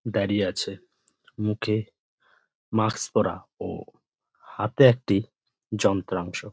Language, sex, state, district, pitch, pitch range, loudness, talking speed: Bengali, male, West Bengal, Dakshin Dinajpur, 105 Hz, 100-110 Hz, -25 LUFS, 80 wpm